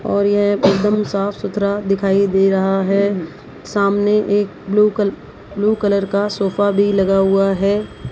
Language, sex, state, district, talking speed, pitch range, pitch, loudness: Hindi, female, Rajasthan, Jaipur, 155 wpm, 195-205 Hz, 200 Hz, -17 LUFS